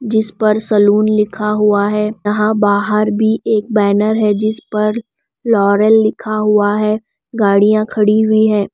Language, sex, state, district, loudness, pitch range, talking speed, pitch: Hindi, female, Bihar, West Champaran, -14 LUFS, 210-220 Hz, 150 wpm, 215 Hz